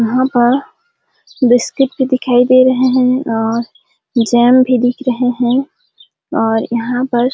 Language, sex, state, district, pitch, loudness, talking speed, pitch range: Hindi, female, Chhattisgarh, Sarguja, 250 Hz, -13 LUFS, 140 wpm, 240-255 Hz